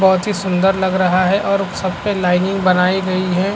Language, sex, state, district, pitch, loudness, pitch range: Hindi, female, Chhattisgarh, Korba, 190 Hz, -16 LUFS, 185-195 Hz